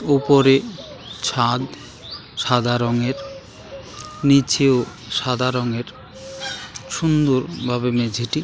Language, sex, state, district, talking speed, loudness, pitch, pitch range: Bengali, male, West Bengal, Alipurduar, 65 wpm, -20 LUFS, 125 Hz, 120-135 Hz